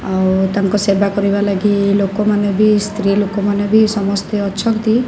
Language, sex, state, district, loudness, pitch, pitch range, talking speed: Odia, female, Odisha, Sambalpur, -15 LUFS, 200 Hz, 200-210 Hz, 155 wpm